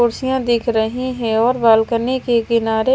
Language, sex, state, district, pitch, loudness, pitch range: Hindi, female, Himachal Pradesh, Shimla, 235 Hz, -17 LUFS, 225-255 Hz